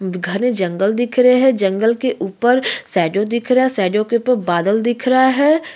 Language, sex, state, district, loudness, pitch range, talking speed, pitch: Hindi, female, Uttarakhand, Tehri Garhwal, -16 LUFS, 195-250 Hz, 210 wpm, 235 Hz